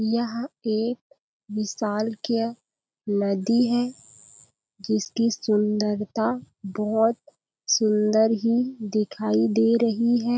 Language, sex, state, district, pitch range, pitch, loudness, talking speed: Hindi, female, Chhattisgarh, Balrampur, 210-235 Hz, 220 Hz, -24 LUFS, 80 wpm